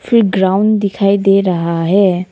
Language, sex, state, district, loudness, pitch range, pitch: Hindi, female, Arunachal Pradesh, Papum Pare, -13 LUFS, 185-200 Hz, 195 Hz